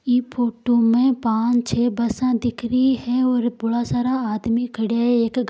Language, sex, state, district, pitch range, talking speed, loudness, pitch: Marwari, female, Rajasthan, Nagaur, 230-250 Hz, 185 wpm, -20 LUFS, 240 Hz